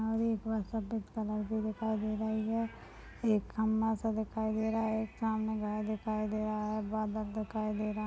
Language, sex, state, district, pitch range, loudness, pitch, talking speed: Hindi, female, Chhattisgarh, Bastar, 215-220 Hz, -35 LUFS, 220 Hz, 195 wpm